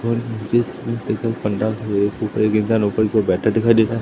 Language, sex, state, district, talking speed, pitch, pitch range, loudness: Hindi, male, Madhya Pradesh, Katni, 90 wpm, 110 Hz, 105-115 Hz, -19 LUFS